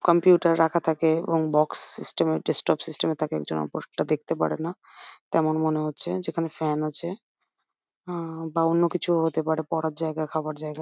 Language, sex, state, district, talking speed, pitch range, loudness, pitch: Bengali, female, West Bengal, Jhargram, 200 wpm, 155-170 Hz, -24 LUFS, 160 Hz